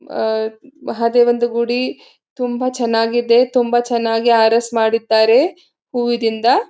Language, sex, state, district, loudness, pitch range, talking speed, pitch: Kannada, female, Karnataka, Belgaum, -16 LUFS, 225-245 Hz, 90 wpm, 235 Hz